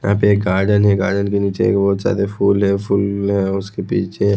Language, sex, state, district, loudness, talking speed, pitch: Hindi, male, Odisha, Khordha, -17 LUFS, 235 wpm, 100 Hz